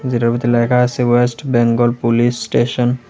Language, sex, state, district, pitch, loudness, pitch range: Bengali, male, Tripura, West Tripura, 120 Hz, -15 LUFS, 120-125 Hz